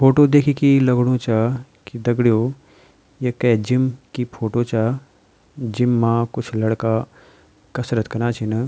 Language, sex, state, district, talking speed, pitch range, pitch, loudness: Garhwali, male, Uttarakhand, Tehri Garhwal, 145 wpm, 115-130 Hz, 120 Hz, -19 LUFS